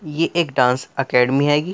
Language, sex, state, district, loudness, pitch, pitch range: Hindi, male, Uttar Pradesh, Muzaffarnagar, -18 LUFS, 140 Hz, 125-160 Hz